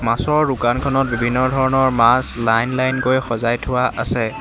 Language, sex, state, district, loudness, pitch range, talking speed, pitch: Assamese, male, Assam, Hailakandi, -17 LUFS, 115-130 Hz, 150 wpm, 125 Hz